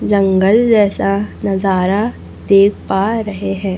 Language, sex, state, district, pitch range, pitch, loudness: Hindi, female, Chhattisgarh, Raipur, 195-205 Hz, 200 Hz, -14 LUFS